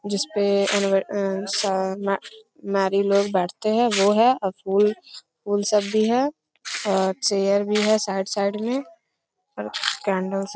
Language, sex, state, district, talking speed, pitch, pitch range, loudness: Hindi, female, Bihar, Jamui, 130 wpm, 200 Hz, 195-215 Hz, -22 LUFS